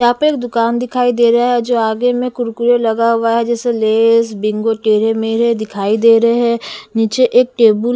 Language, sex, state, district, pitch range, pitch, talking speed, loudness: Hindi, female, Bihar, West Champaran, 225-240 Hz, 235 Hz, 210 wpm, -14 LUFS